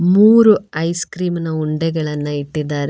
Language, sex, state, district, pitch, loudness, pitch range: Kannada, female, Karnataka, Bangalore, 165 Hz, -16 LUFS, 150-180 Hz